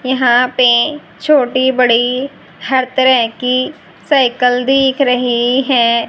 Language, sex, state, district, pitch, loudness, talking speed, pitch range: Hindi, female, Haryana, Charkhi Dadri, 255 Hz, -12 LUFS, 110 wpm, 245-265 Hz